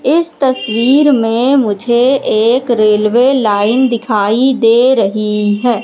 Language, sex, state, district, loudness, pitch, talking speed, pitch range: Hindi, female, Madhya Pradesh, Katni, -11 LUFS, 240 Hz, 115 wpm, 215-260 Hz